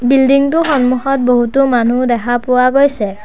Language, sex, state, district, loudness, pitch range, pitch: Assamese, male, Assam, Sonitpur, -12 LUFS, 245-275 Hz, 255 Hz